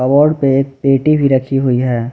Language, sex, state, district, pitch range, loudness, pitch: Hindi, male, Jharkhand, Garhwa, 130-140 Hz, -13 LUFS, 135 Hz